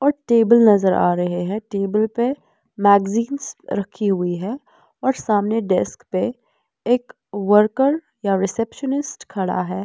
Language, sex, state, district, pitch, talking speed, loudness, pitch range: Hindi, female, Bihar, West Champaran, 210 Hz, 135 wpm, -20 LUFS, 195-245 Hz